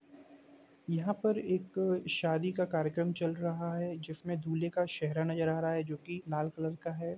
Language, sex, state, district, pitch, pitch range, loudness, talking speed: Hindi, male, Bihar, Sitamarhi, 170 Hz, 160-180 Hz, -34 LUFS, 190 wpm